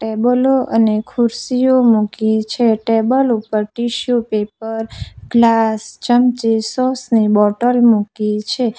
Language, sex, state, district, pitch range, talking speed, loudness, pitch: Gujarati, female, Gujarat, Valsad, 220-245 Hz, 110 wpm, -15 LUFS, 225 Hz